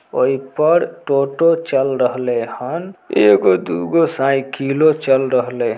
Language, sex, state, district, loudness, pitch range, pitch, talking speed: Maithili, male, Bihar, Samastipur, -16 LUFS, 125-155 Hz, 135 Hz, 125 wpm